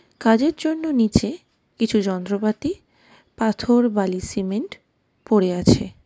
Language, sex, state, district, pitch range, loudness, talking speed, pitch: Bengali, female, West Bengal, Darjeeling, 200-280 Hz, -21 LUFS, 100 wpm, 225 Hz